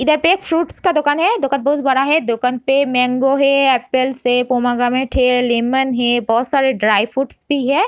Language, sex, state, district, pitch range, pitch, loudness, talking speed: Hindi, female, Bihar, Darbhanga, 245-280 Hz, 265 Hz, -16 LUFS, 230 wpm